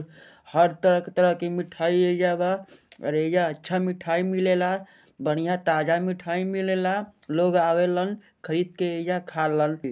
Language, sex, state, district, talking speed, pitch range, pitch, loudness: Bhojpuri, male, Jharkhand, Sahebganj, 145 wpm, 165-185 Hz, 175 Hz, -25 LUFS